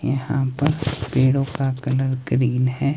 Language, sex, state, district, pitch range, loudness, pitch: Hindi, male, Himachal Pradesh, Shimla, 130-140 Hz, -21 LUFS, 135 Hz